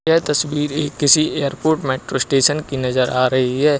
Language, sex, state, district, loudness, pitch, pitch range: Hindi, male, Uttar Pradesh, Lucknow, -17 LUFS, 145 Hz, 130-150 Hz